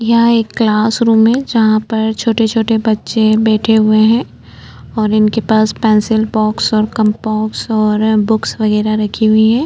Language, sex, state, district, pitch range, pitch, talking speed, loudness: Hindi, female, Uttarakhand, Tehri Garhwal, 215-225 Hz, 220 Hz, 150 wpm, -13 LUFS